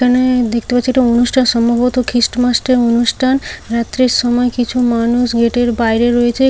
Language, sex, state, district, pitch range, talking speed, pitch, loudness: Bengali, female, West Bengal, Paschim Medinipur, 235-250 Hz, 155 wpm, 245 Hz, -13 LUFS